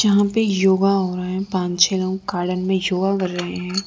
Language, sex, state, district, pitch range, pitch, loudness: Hindi, female, Gujarat, Valsad, 180-195 Hz, 190 Hz, -20 LUFS